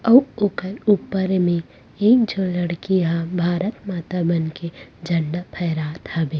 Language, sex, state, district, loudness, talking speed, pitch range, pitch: Chhattisgarhi, female, Chhattisgarh, Rajnandgaon, -21 LUFS, 130 wpm, 170-195 Hz, 175 Hz